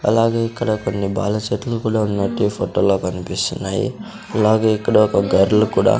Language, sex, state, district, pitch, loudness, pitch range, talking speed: Telugu, male, Andhra Pradesh, Sri Satya Sai, 105 Hz, -18 LUFS, 100-115 Hz, 170 wpm